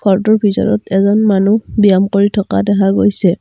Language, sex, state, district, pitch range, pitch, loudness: Assamese, female, Assam, Kamrup Metropolitan, 195-205 Hz, 200 Hz, -12 LUFS